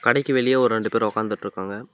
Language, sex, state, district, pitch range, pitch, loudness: Tamil, male, Tamil Nadu, Namakkal, 105-125 Hz, 110 Hz, -22 LUFS